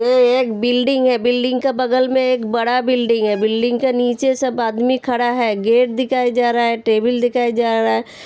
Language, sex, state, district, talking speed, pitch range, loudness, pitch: Hindi, female, Uttar Pradesh, Hamirpur, 210 wpm, 235-255 Hz, -16 LUFS, 245 Hz